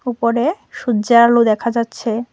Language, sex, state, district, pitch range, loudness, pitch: Bengali, female, Tripura, West Tripura, 230-240 Hz, -16 LUFS, 235 Hz